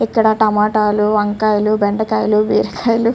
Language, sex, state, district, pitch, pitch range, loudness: Telugu, female, Andhra Pradesh, Chittoor, 215 Hz, 210-220 Hz, -15 LUFS